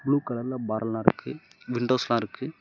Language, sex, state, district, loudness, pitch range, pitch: Tamil, male, Tamil Nadu, Namakkal, -27 LUFS, 115-130 Hz, 125 Hz